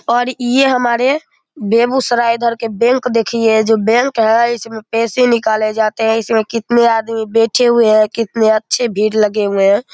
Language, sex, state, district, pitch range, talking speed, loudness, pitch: Hindi, male, Bihar, Begusarai, 220-240 Hz, 170 wpm, -14 LUFS, 230 Hz